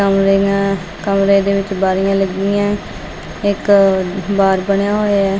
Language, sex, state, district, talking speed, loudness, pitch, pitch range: Punjabi, female, Punjab, Fazilka, 135 wpm, -15 LUFS, 195 Hz, 195-200 Hz